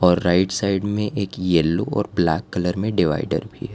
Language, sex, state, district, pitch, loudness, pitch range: Hindi, female, Gujarat, Valsad, 90 Hz, -21 LUFS, 85-100 Hz